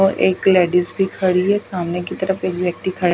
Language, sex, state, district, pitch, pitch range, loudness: Hindi, female, Odisha, Khordha, 185 Hz, 180-190 Hz, -18 LUFS